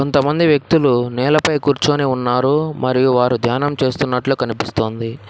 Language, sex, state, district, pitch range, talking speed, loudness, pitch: Telugu, male, Telangana, Hyderabad, 125-145 Hz, 125 wpm, -16 LUFS, 130 Hz